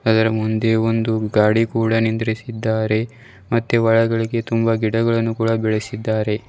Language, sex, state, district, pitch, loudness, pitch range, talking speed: Kannada, male, Karnataka, Bidar, 115 Hz, -19 LUFS, 110-115 Hz, 110 wpm